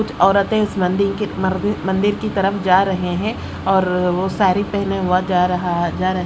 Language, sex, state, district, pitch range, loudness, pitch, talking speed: Hindi, female, Odisha, Sambalpur, 180-200 Hz, -18 LUFS, 190 Hz, 200 wpm